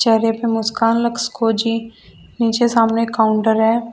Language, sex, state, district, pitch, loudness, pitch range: Hindi, female, Uttar Pradesh, Shamli, 230 Hz, -17 LUFS, 225-235 Hz